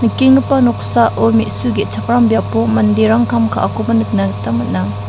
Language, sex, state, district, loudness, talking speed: Garo, female, Meghalaya, South Garo Hills, -14 LUFS, 130 wpm